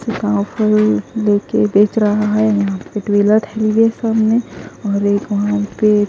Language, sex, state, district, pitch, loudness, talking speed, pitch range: Hindi, female, Punjab, Kapurthala, 210 Hz, -15 LUFS, 80 wpm, 205-220 Hz